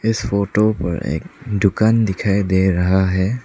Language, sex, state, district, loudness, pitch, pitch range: Hindi, male, Arunachal Pradesh, Lower Dibang Valley, -18 LUFS, 100 Hz, 95-110 Hz